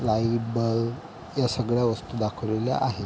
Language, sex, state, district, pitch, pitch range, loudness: Marathi, male, Maharashtra, Pune, 115 Hz, 110-125 Hz, -26 LUFS